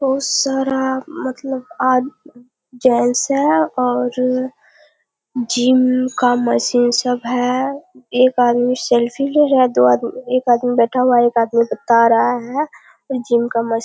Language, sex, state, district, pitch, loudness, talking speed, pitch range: Hindi, female, Bihar, Kishanganj, 250 Hz, -16 LUFS, 145 wpm, 240-265 Hz